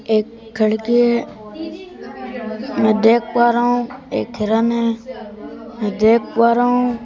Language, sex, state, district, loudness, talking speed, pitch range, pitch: Hindi, male, Madhya Pradesh, Bhopal, -17 LUFS, 135 wpm, 220-240 Hz, 230 Hz